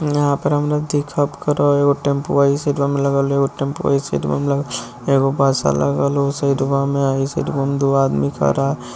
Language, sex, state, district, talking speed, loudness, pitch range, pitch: Hindi, male, Bihar, Lakhisarai, 220 wpm, -18 LUFS, 135-140 Hz, 140 Hz